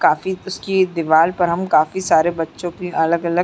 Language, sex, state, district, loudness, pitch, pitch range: Hindi, female, Chhattisgarh, Sarguja, -18 LUFS, 170 Hz, 160-180 Hz